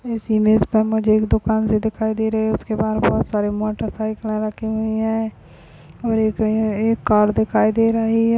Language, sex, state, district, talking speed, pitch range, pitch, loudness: Hindi, female, Goa, North and South Goa, 195 wpm, 215-220 Hz, 220 Hz, -19 LUFS